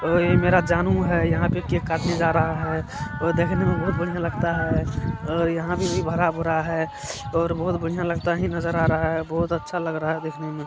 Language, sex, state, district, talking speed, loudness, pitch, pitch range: Maithili, male, Bihar, Supaul, 235 wpm, -23 LUFS, 165 Hz, 160-170 Hz